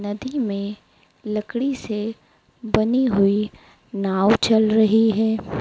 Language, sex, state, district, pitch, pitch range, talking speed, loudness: Hindi, female, Madhya Pradesh, Dhar, 220 Hz, 205-225 Hz, 105 wpm, -21 LUFS